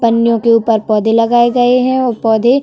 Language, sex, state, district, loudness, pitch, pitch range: Hindi, female, Uttar Pradesh, Varanasi, -12 LUFS, 235 Hz, 225-245 Hz